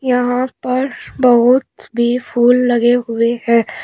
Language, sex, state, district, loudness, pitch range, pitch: Hindi, female, Uttar Pradesh, Shamli, -14 LUFS, 235-250 Hz, 245 Hz